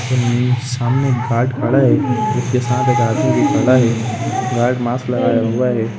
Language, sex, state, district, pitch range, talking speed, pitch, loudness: Hindi, male, Bihar, Gopalganj, 120-125 Hz, 150 wpm, 125 Hz, -16 LUFS